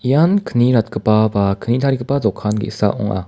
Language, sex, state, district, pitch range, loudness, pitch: Garo, male, Meghalaya, West Garo Hills, 105-135 Hz, -17 LUFS, 110 Hz